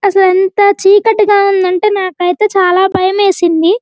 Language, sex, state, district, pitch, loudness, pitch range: Telugu, female, Andhra Pradesh, Guntur, 385 Hz, -10 LUFS, 370-405 Hz